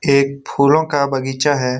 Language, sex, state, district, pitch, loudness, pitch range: Hindi, male, Bihar, Saran, 140 Hz, -16 LUFS, 135-145 Hz